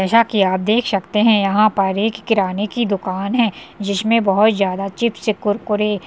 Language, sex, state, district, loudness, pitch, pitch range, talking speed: Hindi, female, Uttar Pradesh, Hamirpur, -17 LUFS, 205 Hz, 195-220 Hz, 190 wpm